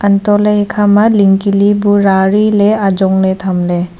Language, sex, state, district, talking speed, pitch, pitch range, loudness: Wancho, female, Arunachal Pradesh, Longding, 120 wpm, 200 Hz, 190-205 Hz, -11 LUFS